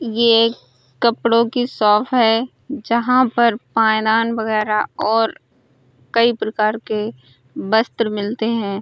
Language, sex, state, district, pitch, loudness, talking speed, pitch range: Hindi, female, Uttar Pradesh, Budaun, 225 Hz, -17 LUFS, 115 wpm, 210-235 Hz